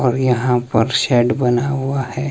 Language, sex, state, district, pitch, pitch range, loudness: Hindi, male, Himachal Pradesh, Shimla, 125 Hz, 120-135 Hz, -17 LUFS